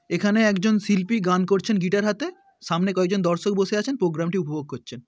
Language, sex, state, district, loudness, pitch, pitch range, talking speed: Bengali, male, West Bengal, Paschim Medinipur, -23 LUFS, 195 Hz, 175-210 Hz, 175 wpm